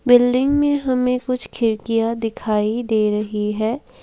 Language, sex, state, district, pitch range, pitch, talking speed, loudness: Hindi, female, Assam, Kamrup Metropolitan, 215-250 Hz, 230 Hz, 135 wpm, -19 LUFS